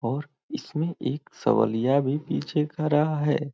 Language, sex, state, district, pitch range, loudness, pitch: Hindi, male, Bihar, Muzaffarpur, 135-155 Hz, -26 LUFS, 150 Hz